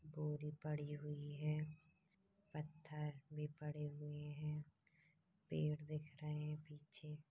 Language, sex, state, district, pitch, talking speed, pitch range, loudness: Hindi, female, Chhattisgarh, Balrampur, 150 Hz, 115 wpm, 150-155 Hz, -48 LUFS